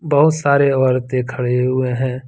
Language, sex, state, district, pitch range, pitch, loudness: Hindi, male, Jharkhand, Deoghar, 125-140 Hz, 130 Hz, -16 LUFS